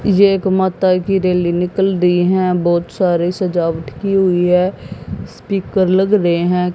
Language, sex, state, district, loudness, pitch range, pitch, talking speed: Hindi, female, Haryana, Jhajjar, -15 LUFS, 175-190 Hz, 180 Hz, 160 wpm